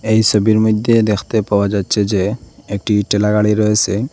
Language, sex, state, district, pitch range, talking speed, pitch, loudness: Bengali, male, Assam, Hailakandi, 100-110 Hz, 160 wpm, 105 Hz, -15 LUFS